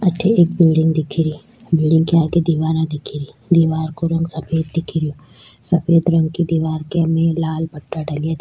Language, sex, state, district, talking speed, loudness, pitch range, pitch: Rajasthani, female, Rajasthan, Churu, 185 wpm, -18 LUFS, 155-165 Hz, 160 Hz